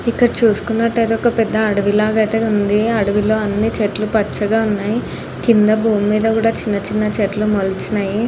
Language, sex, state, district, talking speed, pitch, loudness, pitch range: Telugu, female, Andhra Pradesh, Anantapur, 145 wpm, 215 Hz, -16 LUFS, 205-225 Hz